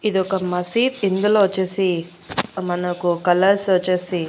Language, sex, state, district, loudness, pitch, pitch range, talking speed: Telugu, female, Andhra Pradesh, Annamaya, -20 LUFS, 185 Hz, 180-195 Hz, 100 wpm